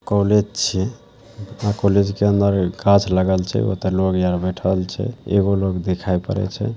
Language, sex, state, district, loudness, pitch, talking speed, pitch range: Maithili, male, Bihar, Saharsa, -19 LUFS, 100 Hz, 170 wpm, 95-105 Hz